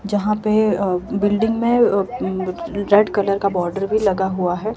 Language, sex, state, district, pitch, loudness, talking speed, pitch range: Hindi, female, Himachal Pradesh, Shimla, 205 Hz, -19 LUFS, 150 wpm, 190-215 Hz